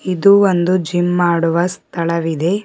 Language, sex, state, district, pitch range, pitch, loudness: Kannada, male, Karnataka, Bidar, 170-185 Hz, 175 Hz, -15 LUFS